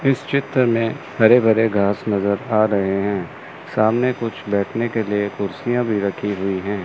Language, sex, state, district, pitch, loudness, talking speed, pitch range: Hindi, male, Chandigarh, Chandigarh, 110 Hz, -19 LUFS, 175 wpm, 100-120 Hz